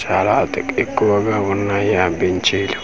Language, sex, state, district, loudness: Telugu, male, Andhra Pradesh, Manyam, -17 LUFS